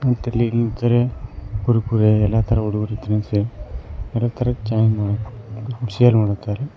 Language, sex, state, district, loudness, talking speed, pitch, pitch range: Kannada, male, Karnataka, Koppal, -20 LUFS, 125 wpm, 110 Hz, 105-120 Hz